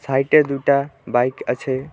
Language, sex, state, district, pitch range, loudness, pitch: Bengali, male, West Bengal, Alipurduar, 130-145 Hz, -19 LUFS, 135 Hz